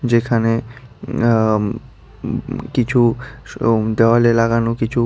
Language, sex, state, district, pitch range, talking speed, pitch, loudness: Bengali, female, Tripura, West Tripura, 115-120 Hz, 70 wpm, 115 Hz, -17 LUFS